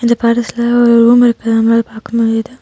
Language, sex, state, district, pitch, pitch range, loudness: Tamil, female, Tamil Nadu, Nilgiris, 235 Hz, 225-235 Hz, -11 LUFS